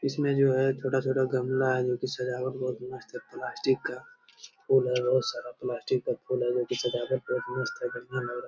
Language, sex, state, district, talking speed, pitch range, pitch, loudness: Hindi, male, Bihar, Jamui, 225 wpm, 125-135 Hz, 130 Hz, -29 LUFS